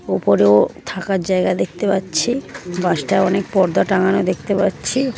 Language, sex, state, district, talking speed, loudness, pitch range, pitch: Bengali, female, West Bengal, Paschim Medinipur, 125 wpm, -17 LUFS, 175-195 Hz, 190 Hz